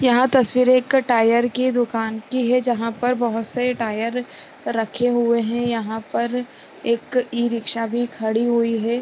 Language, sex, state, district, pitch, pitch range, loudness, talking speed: Hindi, female, Bihar, Sitamarhi, 240 Hz, 230-250 Hz, -20 LUFS, 165 wpm